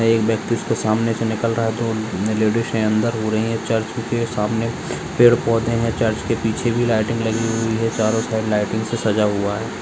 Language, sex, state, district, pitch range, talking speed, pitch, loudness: Hindi, male, Bihar, Bhagalpur, 110-115 Hz, 210 wpm, 115 Hz, -20 LUFS